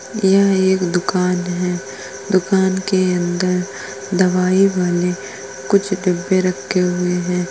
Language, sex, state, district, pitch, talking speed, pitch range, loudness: Hindi, female, Uttar Pradesh, Etah, 180 Hz, 110 wpm, 180-190 Hz, -17 LUFS